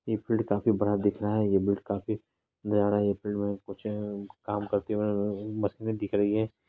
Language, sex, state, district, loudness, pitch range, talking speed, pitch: Hindi, female, Bihar, Saharsa, -29 LUFS, 100-105 Hz, 195 wpm, 105 Hz